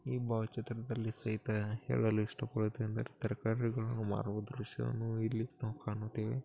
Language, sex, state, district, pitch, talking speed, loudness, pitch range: Kannada, male, Karnataka, Bellary, 110 Hz, 100 wpm, -38 LUFS, 110-115 Hz